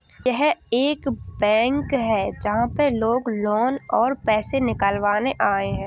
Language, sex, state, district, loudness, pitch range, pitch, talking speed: Hindi, female, Uttar Pradesh, Gorakhpur, -22 LUFS, 210-270 Hz, 235 Hz, 135 wpm